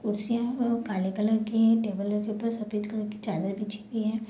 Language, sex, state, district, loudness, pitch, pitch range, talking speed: Hindi, female, Bihar, Sitamarhi, -28 LUFS, 215 Hz, 210-225 Hz, 265 wpm